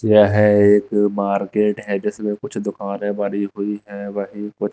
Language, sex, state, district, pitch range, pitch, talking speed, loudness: Hindi, male, Bihar, Katihar, 100-105 Hz, 105 Hz, 150 wpm, -19 LUFS